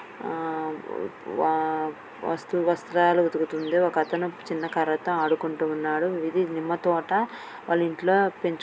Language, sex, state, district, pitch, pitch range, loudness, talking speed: Telugu, female, Telangana, Karimnagar, 165 Hz, 160-175 Hz, -26 LUFS, 105 wpm